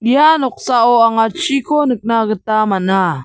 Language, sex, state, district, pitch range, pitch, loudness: Garo, female, Meghalaya, South Garo Hills, 215-270 Hz, 230 Hz, -14 LUFS